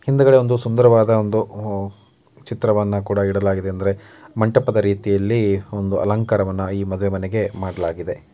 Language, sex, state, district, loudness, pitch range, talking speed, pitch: Kannada, male, Karnataka, Mysore, -19 LUFS, 100-110 Hz, 110 wpm, 100 Hz